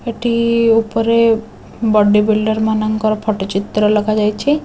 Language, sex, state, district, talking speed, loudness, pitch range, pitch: Odia, female, Odisha, Khordha, 105 wpm, -15 LUFS, 210-230 Hz, 220 Hz